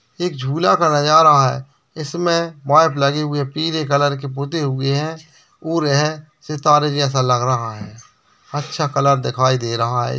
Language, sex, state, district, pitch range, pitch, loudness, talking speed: Hindi, male, Bihar, Bhagalpur, 135-155 Hz, 145 Hz, -17 LUFS, 170 wpm